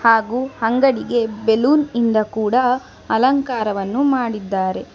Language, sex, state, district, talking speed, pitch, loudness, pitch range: Kannada, female, Karnataka, Bangalore, 85 wpm, 235 Hz, -18 LUFS, 220-255 Hz